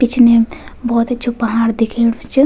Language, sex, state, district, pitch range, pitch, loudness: Garhwali, female, Uttarakhand, Tehri Garhwal, 230-245 Hz, 235 Hz, -14 LUFS